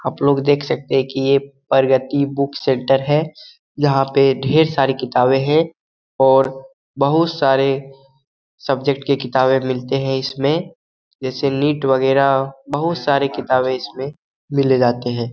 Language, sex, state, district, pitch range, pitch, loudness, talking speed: Hindi, male, Bihar, Lakhisarai, 135-140 Hz, 135 Hz, -17 LUFS, 140 wpm